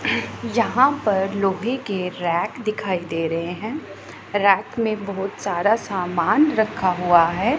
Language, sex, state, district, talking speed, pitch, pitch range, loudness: Hindi, female, Punjab, Pathankot, 135 wpm, 200 Hz, 180-220 Hz, -21 LUFS